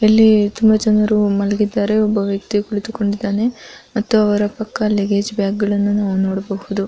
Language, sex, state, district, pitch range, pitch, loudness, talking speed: Kannada, female, Karnataka, Dakshina Kannada, 200-215 Hz, 205 Hz, -17 LUFS, 140 wpm